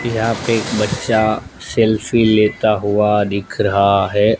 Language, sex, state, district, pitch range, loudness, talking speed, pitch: Hindi, male, Gujarat, Gandhinagar, 100-115 Hz, -16 LUFS, 150 wpm, 110 Hz